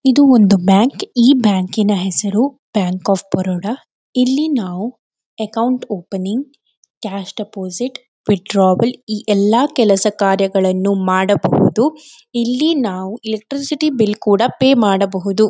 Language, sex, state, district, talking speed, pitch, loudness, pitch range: Kannada, female, Karnataka, Dakshina Kannada, 105 wpm, 215 Hz, -16 LUFS, 195-250 Hz